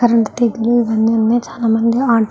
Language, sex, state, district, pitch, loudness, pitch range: Telugu, female, Andhra Pradesh, Guntur, 230 Hz, -15 LUFS, 225-240 Hz